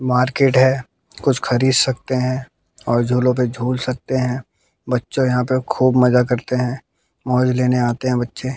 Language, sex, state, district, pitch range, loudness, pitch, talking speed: Hindi, male, Bihar, West Champaran, 120-130 Hz, -18 LUFS, 125 Hz, 170 wpm